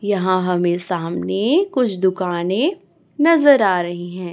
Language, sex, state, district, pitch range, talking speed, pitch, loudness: Hindi, female, Chhattisgarh, Raipur, 175-265 Hz, 125 wpm, 185 Hz, -18 LUFS